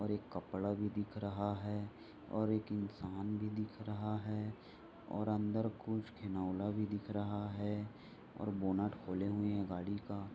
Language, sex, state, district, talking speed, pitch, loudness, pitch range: Hindi, male, Maharashtra, Sindhudurg, 170 wpm, 105 Hz, -41 LUFS, 100-105 Hz